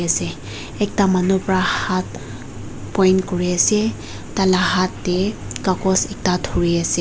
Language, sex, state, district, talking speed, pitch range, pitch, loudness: Nagamese, female, Nagaland, Dimapur, 135 wpm, 170-190 Hz, 185 Hz, -19 LUFS